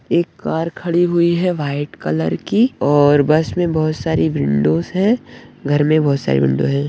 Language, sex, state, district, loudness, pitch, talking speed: Hindi, male, Bihar, Bhagalpur, -17 LUFS, 155 Hz, 185 wpm